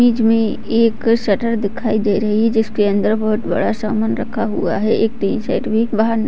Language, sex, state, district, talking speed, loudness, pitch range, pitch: Hindi, female, Bihar, Jamui, 240 wpm, -17 LUFS, 215-230 Hz, 220 Hz